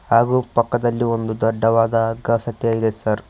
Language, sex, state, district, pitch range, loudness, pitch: Kannada, male, Karnataka, Koppal, 115-120 Hz, -19 LUFS, 115 Hz